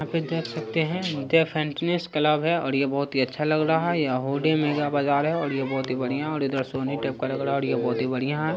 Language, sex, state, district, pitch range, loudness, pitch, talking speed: Hindi, male, Bihar, Saharsa, 135-160 Hz, -25 LUFS, 150 Hz, 265 wpm